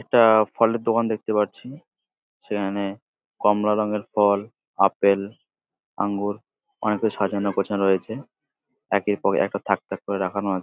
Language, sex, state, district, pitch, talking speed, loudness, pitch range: Bengali, male, West Bengal, Jalpaiguri, 105 Hz, 130 wpm, -23 LUFS, 100-110 Hz